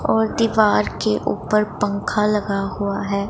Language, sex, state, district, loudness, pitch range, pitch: Hindi, female, Punjab, Pathankot, -20 LUFS, 200-210 Hz, 205 Hz